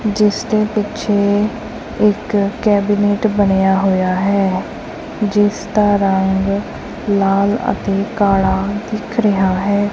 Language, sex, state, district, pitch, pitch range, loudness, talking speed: Punjabi, female, Punjab, Kapurthala, 205 Hz, 195-210 Hz, -16 LUFS, 95 wpm